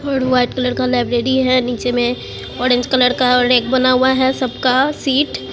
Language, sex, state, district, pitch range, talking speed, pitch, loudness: Hindi, female, Bihar, Katihar, 245-260 Hz, 215 wpm, 255 Hz, -15 LUFS